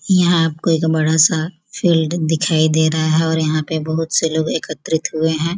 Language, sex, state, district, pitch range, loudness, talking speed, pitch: Hindi, female, Bihar, Gopalganj, 160-165 Hz, -17 LUFS, 205 wpm, 160 Hz